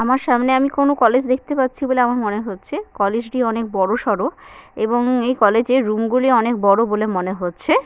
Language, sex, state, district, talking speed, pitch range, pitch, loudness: Bengali, female, West Bengal, Purulia, 215 wpm, 215-260 Hz, 240 Hz, -18 LUFS